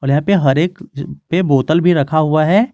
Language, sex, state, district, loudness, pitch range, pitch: Hindi, male, Jharkhand, Garhwa, -14 LUFS, 145-180 Hz, 155 Hz